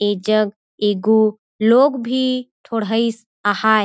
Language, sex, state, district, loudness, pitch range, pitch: Surgujia, female, Chhattisgarh, Sarguja, -18 LUFS, 215-240 Hz, 220 Hz